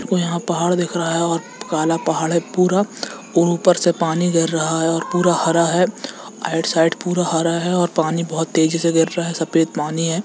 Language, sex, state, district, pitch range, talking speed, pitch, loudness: Hindi, male, Jharkhand, Jamtara, 165-180 Hz, 200 wpm, 170 Hz, -18 LUFS